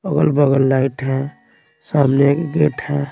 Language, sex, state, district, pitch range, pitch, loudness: Hindi, male, Bihar, Patna, 135-145 Hz, 140 Hz, -17 LUFS